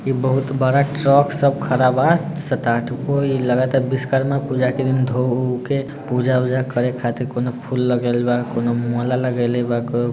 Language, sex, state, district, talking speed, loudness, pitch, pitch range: Bhojpuri, male, Bihar, Sitamarhi, 180 wpm, -19 LUFS, 130 Hz, 125-135 Hz